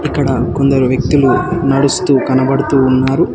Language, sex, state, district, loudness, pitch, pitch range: Telugu, male, Telangana, Hyderabad, -12 LUFS, 135 Hz, 130-140 Hz